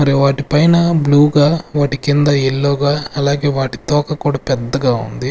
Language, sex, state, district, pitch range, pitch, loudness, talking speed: Telugu, male, Andhra Pradesh, Sri Satya Sai, 135-150 Hz, 145 Hz, -14 LUFS, 170 wpm